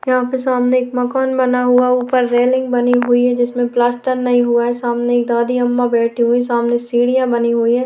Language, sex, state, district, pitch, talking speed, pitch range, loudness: Hindi, female, Bihar, Vaishali, 245 Hz, 215 wpm, 240-250 Hz, -15 LUFS